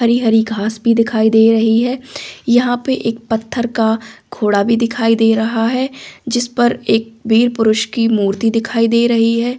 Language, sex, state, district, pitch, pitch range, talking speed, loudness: Hindi, female, Delhi, New Delhi, 230 Hz, 225-240 Hz, 190 wpm, -15 LUFS